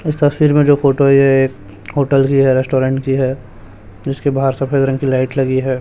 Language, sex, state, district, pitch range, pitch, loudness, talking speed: Hindi, male, Chhattisgarh, Raipur, 130-140 Hz, 135 Hz, -14 LUFS, 225 wpm